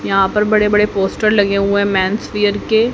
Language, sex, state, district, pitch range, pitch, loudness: Hindi, female, Haryana, Jhajjar, 200-210 Hz, 205 Hz, -15 LUFS